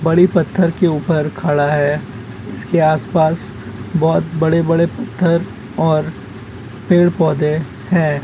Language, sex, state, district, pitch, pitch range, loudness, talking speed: Hindi, male, West Bengal, Purulia, 155 Hz, 125-170 Hz, -16 LUFS, 100 wpm